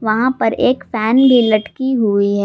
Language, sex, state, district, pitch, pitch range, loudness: Hindi, female, Jharkhand, Garhwa, 225 Hz, 215-255 Hz, -14 LUFS